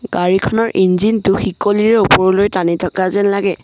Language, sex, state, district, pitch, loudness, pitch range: Assamese, male, Assam, Sonitpur, 195 Hz, -14 LUFS, 185-205 Hz